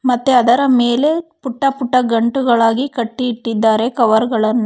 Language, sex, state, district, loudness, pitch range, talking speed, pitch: Kannada, female, Karnataka, Bangalore, -15 LUFS, 230-265 Hz, 130 wpm, 245 Hz